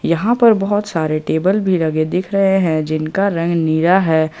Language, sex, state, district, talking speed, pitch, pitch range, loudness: Hindi, male, Jharkhand, Ranchi, 190 wpm, 170 Hz, 160-195 Hz, -16 LUFS